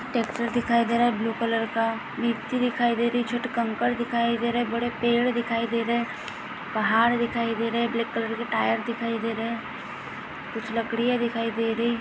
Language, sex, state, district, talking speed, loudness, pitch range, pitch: Hindi, female, Goa, North and South Goa, 220 wpm, -26 LUFS, 230-240 Hz, 235 Hz